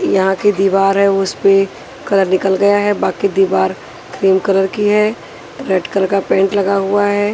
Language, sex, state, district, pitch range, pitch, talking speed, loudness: Hindi, female, Maharashtra, Washim, 195-205 Hz, 195 Hz, 190 wpm, -14 LUFS